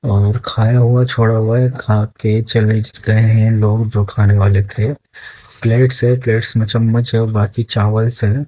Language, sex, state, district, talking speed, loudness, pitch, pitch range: Hindi, male, Haryana, Jhajjar, 185 wpm, -14 LUFS, 110 Hz, 105-120 Hz